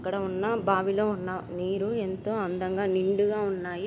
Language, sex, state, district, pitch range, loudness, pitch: Telugu, female, Andhra Pradesh, Guntur, 185-205 Hz, -28 LUFS, 195 Hz